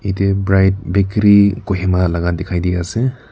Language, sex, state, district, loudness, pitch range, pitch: Nagamese, male, Nagaland, Kohima, -15 LUFS, 90-100 Hz, 95 Hz